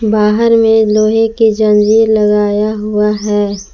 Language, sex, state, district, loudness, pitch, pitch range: Hindi, female, Jharkhand, Palamu, -11 LUFS, 215 Hz, 210-220 Hz